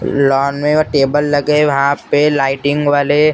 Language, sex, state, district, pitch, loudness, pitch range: Hindi, male, Maharashtra, Gondia, 145 Hz, -13 LUFS, 140-150 Hz